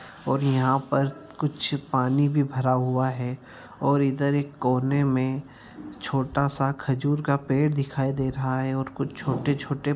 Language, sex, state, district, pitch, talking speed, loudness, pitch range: Hindi, male, Bihar, Jamui, 135 Hz, 165 wpm, -25 LUFS, 130-140 Hz